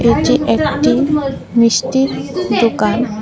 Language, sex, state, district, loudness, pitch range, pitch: Bengali, female, Tripura, West Tripura, -14 LUFS, 230-265 Hz, 240 Hz